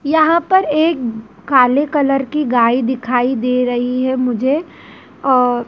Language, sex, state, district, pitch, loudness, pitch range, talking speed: Hindi, female, Madhya Pradesh, Dhar, 255 Hz, -15 LUFS, 245-295 Hz, 135 wpm